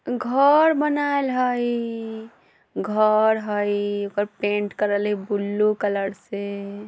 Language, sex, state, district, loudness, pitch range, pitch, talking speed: Bajjika, female, Bihar, Vaishali, -22 LUFS, 205-240 Hz, 210 Hz, 105 wpm